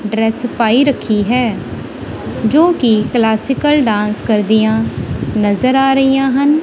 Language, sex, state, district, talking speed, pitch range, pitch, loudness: Punjabi, female, Punjab, Kapurthala, 120 wpm, 220-270 Hz, 235 Hz, -13 LUFS